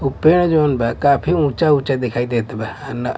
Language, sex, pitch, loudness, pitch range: Bhojpuri, male, 135 Hz, -17 LUFS, 120-155 Hz